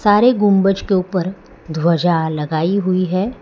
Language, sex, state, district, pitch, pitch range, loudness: Hindi, male, Gujarat, Valsad, 185 Hz, 170-200 Hz, -16 LUFS